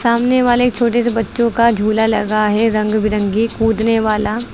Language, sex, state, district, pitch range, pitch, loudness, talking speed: Hindi, female, Uttar Pradesh, Lucknow, 215-235 Hz, 225 Hz, -15 LUFS, 170 wpm